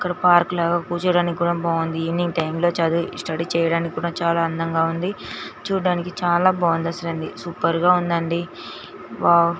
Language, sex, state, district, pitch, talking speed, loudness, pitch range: Telugu, female, Andhra Pradesh, Srikakulam, 170 Hz, 155 wpm, -21 LUFS, 165-175 Hz